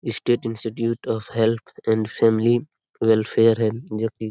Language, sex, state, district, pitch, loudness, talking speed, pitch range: Hindi, male, Bihar, Darbhanga, 115 Hz, -22 LUFS, 155 wpm, 110-115 Hz